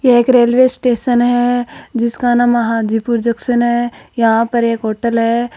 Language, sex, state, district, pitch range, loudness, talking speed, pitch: Marwari, female, Rajasthan, Churu, 230-245 Hz, -14 LUFS, 160 wpm, 240 Hz